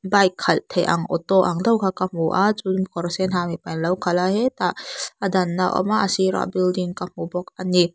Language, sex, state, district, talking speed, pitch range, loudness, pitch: Mizo, female, Mizoram, Aizawl, 265 wpm, 175-190 Hz, -21 LUFS, 185 Hz